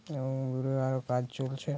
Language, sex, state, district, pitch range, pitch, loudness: Bengali, male, West Bengal, Kolkata, 130-135 Hz, 130 Hz, -33 LUFS